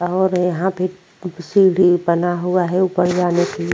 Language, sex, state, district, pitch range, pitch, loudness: Hindi, female, Uttar Pradesh, Jyotiba Phule Nagar, 175-185 Hz, 180 Hz, -17 LUFS